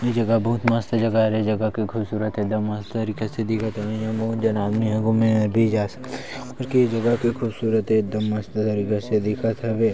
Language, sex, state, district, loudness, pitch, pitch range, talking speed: Chhattisgarhi, male, Chhattisgarh, Sarguja, -23 LUFS, 110 Hz, 110-115 Hz, 210 wpm